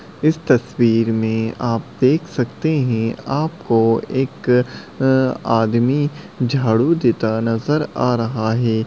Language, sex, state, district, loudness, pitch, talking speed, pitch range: Hindi, male, Bihar, Gaya, -18 LUFS, 120 Hz, 115 wpm, 115-135 Hz